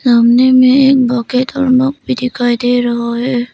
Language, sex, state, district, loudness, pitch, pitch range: Hindi, female, Arunachal Pradesh, Papum Pare, -12 LUFS, 250 Hz, 240-255 Hz